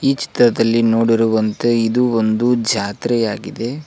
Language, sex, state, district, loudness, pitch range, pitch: Kannada, male, Karnataka, Koppal, -16 LUFS, 110-120 Hz, 115 Hz